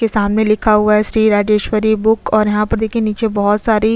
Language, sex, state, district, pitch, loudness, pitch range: Hindi, female, Chhattisgarh, Sukma, 215 Hz, -14 LUFS, 210-220 Hz